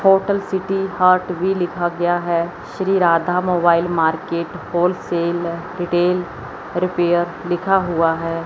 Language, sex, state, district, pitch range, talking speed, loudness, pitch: Hindi, male, Chandigarh, Chandigarh, 170-185 Hz, 120 wpm, -19 LUFS, 175 Hz